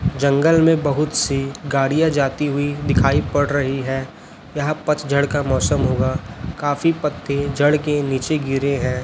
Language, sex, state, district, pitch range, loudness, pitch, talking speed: Hindi, male, Chhattisgarh, Raipur, 135-150 Hz, -19 LUFS, 145 Hz, 155 wpm